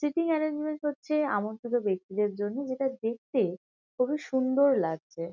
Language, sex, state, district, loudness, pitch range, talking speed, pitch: Bengali, female, West Bengal, Kolkata, -29 LUFS, 205-295 Hz, 145 wpm, 260 Hz